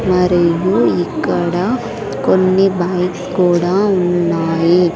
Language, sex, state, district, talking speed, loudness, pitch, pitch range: Telugu, female, Andhra Pradesh, Sri Satya Sai, 70 wpm, -15 LUFS, 180 Hz, 175-190 Hz